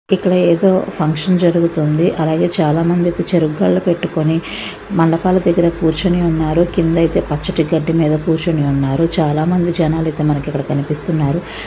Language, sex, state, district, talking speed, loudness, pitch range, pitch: Telugu, female, Andhra Pradesh, Visakhapatnam, 140 wpm, -15 LUFS, 155-175 Hz, 165 Hz